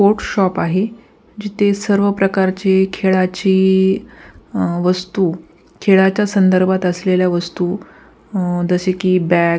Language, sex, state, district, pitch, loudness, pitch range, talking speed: Marathi, female, Maharashtra, Pune, 190 Hz, -16 LUFS, 180-200 Hz, 105 wpm